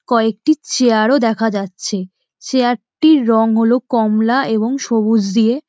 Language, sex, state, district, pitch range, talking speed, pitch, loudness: Bengali, female, West Bengal, Dakshin Dinajpur, 220-255 Hz, 135 wpm, 230 Hz, -15 LUFS